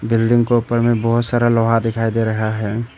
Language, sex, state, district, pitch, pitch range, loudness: Hindi, male, Arunachal Pradesh, Papum Pare, 115 Hz, 115-120 Hz, -17 LUFS